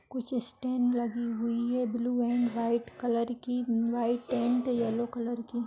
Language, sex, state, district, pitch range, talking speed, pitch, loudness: Hindi, female, Maharashtra, Nagpur, 235-245 Hz, 160 wpm, 240 Hz, -30 LUFS